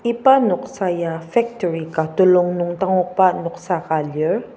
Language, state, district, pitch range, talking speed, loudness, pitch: Ao, Nagaland, Dimapur, 165-195 Hz, 145 wpm, -19 LUFS, 180 Hz